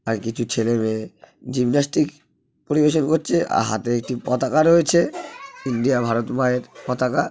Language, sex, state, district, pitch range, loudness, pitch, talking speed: Bengali, male, West Bengal, Purulia, 115-150 Hz, -21 LUFS, 125 Hz, 115 wpm